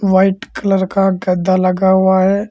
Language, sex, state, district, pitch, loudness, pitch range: Hindi, male, Uttar Pradesh, Saharanpur, 190 Hz, -14 LUFS, 185-195 Hz